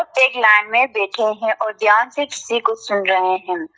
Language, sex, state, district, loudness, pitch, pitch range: Hindi, female, Arunachal Pradesh, Lower Dibang Valley, -17 LUFS, 220 Hz, 200-235 Hz